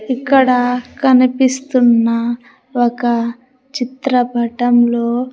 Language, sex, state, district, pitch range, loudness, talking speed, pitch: Telugu, female, Andhra Pradesh, Sri Satya Sai, 240-260 Hz, -15 LUFS, 45 wpm, 245 Hz